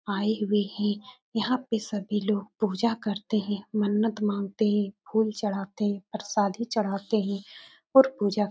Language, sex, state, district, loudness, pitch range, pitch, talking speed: Hindi, female, Uttar Pradesh, Etah, -27 LUFS, 205-220 Hz, 210 Hz, 150 wpm